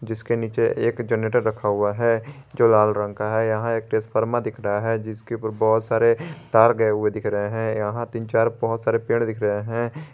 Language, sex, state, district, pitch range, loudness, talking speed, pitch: Hindi, male, Jharkhand, Garhwa, 110-115 Hz, -22 LUFS, 220 wpm, 115 Hz